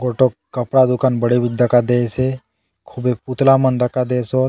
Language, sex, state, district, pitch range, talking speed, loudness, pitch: Halbi, male, Chhattisgarh, Bastar, 120-130 Hz, 185 wpm, -17 LUFS, 125 Hz